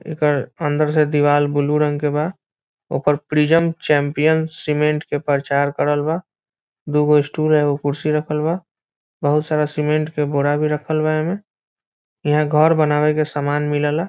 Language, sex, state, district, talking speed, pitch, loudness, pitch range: Hindi, male, Bihar, Saran, 160 wpm, 150 Hz, -18 LUFS, 145-155 Hz